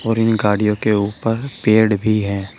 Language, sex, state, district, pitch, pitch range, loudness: Hindi, male, Uttar Pradesh, Shamli, 110 Hz, 105-115 Hz, -17 LUFS